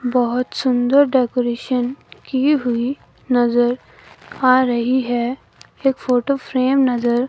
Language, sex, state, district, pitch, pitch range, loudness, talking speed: Hindi, female, Himachal Pradesh, Shimla, 250 Hz, 245-265 Hz, -18 LUFS, 105 wpm